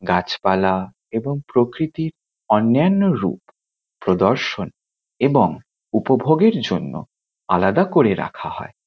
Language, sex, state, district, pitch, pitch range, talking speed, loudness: Bengali, male, West Bengal, Kolkata, 140 Hz, 105-160 Hz, 90 wpm, -19 LUFS